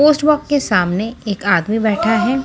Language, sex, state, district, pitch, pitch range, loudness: Hindi, female, Haryana, Charkhi Dadri, 225 Hz, 205-285 Hz, -16 LUFS